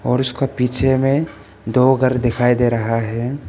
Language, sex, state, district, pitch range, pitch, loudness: Hindi, male, Arunachal Pradesh, Papum Pare, 115-130 Hz, 125 Hz, -17 LUFS